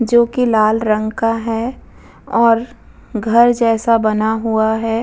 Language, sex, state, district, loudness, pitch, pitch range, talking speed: Hindi, female, Bihar, Vaishali, -15 LUFS, 225 Hz, 220-235 Hz, 145 wpm